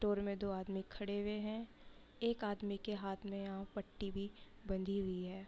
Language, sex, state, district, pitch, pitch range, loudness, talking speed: Hindi, female, Uttar Pradesh, Budaun, 200 Hz, 195-205 Hz, -43 LUFS, 210 wpm